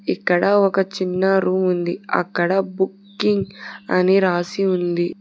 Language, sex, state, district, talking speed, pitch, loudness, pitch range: Telugu, female, Telangana, Hyderabad, 115 wpm, 190 Hz, -19 LUFS, 180-195 Hz